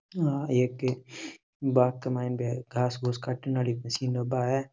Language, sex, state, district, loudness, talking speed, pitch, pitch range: Rajasthani, male, Rajasthan, Churu, -29 LUFS, 140 wpm, 125 Hz, 125-135 Hz